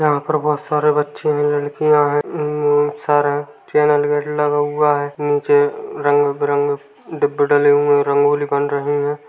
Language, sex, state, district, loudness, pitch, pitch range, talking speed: Hindi, male, Chhattisgarh, Kabirdham, -17 LUFS, 145 Hz, 145-150 Hz, 195 wpm